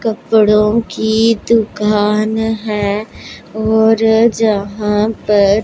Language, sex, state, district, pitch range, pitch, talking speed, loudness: Hindi, female, Punjab, Pathankot, 210-225 Hz, 220 Hz, 75 wpm, -13 LUFS